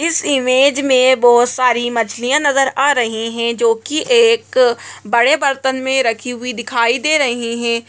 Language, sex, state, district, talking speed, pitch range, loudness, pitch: Hindi, female, Bihar, Gaya, 165 wpm, 235-275 Hz, -14 LUFS, 250 Hz